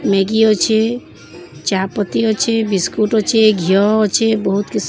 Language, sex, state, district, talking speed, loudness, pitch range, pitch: Odia, male, Odisha, Sambalpur, 145 wpm, -15 LUFS, 195-220 Hz, 215 Hz